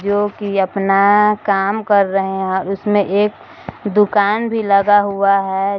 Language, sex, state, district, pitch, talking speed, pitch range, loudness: Hindi, female, Bihar, Jahanabad, 200 Hz, 155 wpm, 195-205 Hz, -15 LUFS